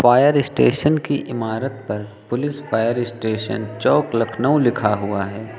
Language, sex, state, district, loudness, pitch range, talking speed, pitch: Hindi, male, Uttar Pradesh, Lucknow, -20 LUFS, 110-140 Hz, 140 wpm, 120 Hz